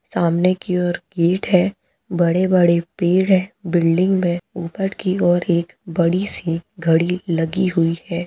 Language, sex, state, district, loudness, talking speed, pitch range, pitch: Hindi, female, Rajasthan, Nagaur, -19 LUFS, 145 wpm, 170-185 Hz, 175 Hz